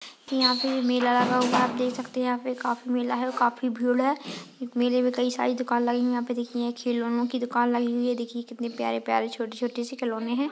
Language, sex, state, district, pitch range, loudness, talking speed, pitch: Hindi, female, Goa, North and South Goa, 240-250 Hz, -26 LUFS, 260 wpm, 245 Hz